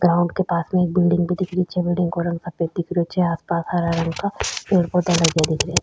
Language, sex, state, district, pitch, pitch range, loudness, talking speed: Rajasthani, female, Rajasthan, Nagaur, 175 Hz, 170-180 Hz, -21 LUFS, 290 wpm